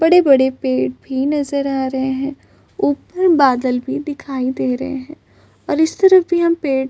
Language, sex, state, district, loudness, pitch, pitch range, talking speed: Hindi, female, Maharashtra, Chandrapur, -17 LUFS, 275 Hz, 265-310 Hz, 190 wpm